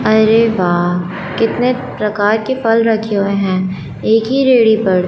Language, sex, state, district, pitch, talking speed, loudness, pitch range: Hindi, female, Chandigarh, Chandigarh, 215 Hz, 140 wpm, -14 LUFS, 185-225 Hz